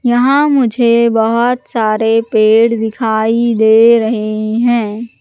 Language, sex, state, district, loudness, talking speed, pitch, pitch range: Hindi, female, Madhya Pradesh, Katni, -12 LUFS, 105 wpm, 230 Hz, 220-235 Hz